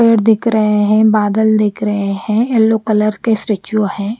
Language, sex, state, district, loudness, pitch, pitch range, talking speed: Hindi, female, Chandigarh, Chandigarh, -14 LUFS, 215 Hz, 210-220 Hz, 185 wpm